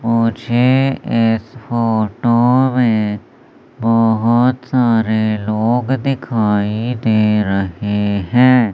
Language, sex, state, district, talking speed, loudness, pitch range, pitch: Hindi, male, Madhya Pradesh, Umaria, 75 wpm, -15 LUFS, 110-125 Hz, 115 Hz